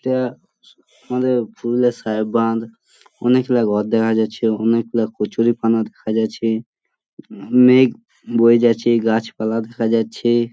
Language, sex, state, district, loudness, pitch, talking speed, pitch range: Bengali, male, West Bengal, Purulia, -18 LUFS, 115 Hz, 130 wpm, 110-120 Hz